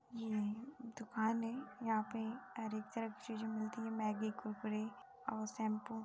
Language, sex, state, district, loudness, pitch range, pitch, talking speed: Hindi, female, Chhattisgarh, Raigarh, -43 LUFS, 215-230 Hz, 220 Hz, 160 wpm